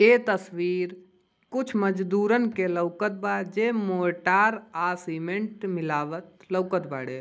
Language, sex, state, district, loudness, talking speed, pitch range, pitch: Bhojpuri, male, Bihar, Gopalganj, -26 LUFS, 125 wpm, 175-210 Hz, 185 Hz